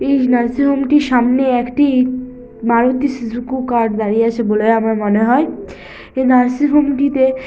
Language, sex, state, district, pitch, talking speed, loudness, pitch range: Bengali, female, West Bengal, Malda, 250 Hz, 160 wpm, -15 LUFS, 235-270 Hz